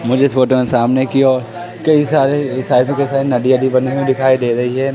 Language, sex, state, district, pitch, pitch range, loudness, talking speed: Hindi, male, Madhya Pradesh, Katni, 130 Hz, 130-140 Hz, -14 LUFS, 205 wpm